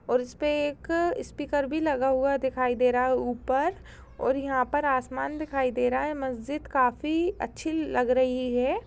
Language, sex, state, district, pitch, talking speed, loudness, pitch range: Hindi, female, Bihar, Purnia, 265 Hz, 175 wpm, -27 LUFS, 255-295 Hz